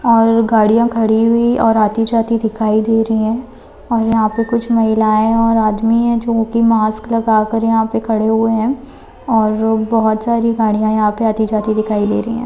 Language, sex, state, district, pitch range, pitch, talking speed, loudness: Hindi, female, West Bengal, Jhargram, 220-230 Hz, 225 Hz, 195 wpm, -14 LUFS